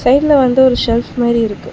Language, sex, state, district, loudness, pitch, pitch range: Tamil, female, Tamil Nadu, Chennai, -12 LUFS, 245 Hz, 235-265 Hz